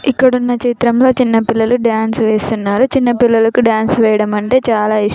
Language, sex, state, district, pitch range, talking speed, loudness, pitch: Telugu, female, Telangana, Nalgonda, 220-245 Hz, 140 wpm, -13 LUFS, 230 Hz